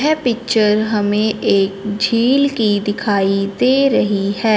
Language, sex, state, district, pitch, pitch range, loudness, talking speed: Hindi, male, Punjab, Fazilka, 215 Hz, 205-235 Hz, -16 LUFS, 130 wpm